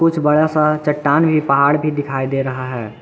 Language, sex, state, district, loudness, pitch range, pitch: Hindi, male, Jharkhand, Garhwa, -16 LUFS, 135-155 Hz, 145 Hz